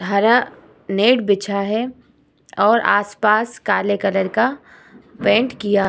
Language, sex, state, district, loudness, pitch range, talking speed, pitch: Hindi, female, Uttar Pradesh, Muzaffarnagar, -18 LUFS, 200-230 Hz, 120 wpm, 205 Hz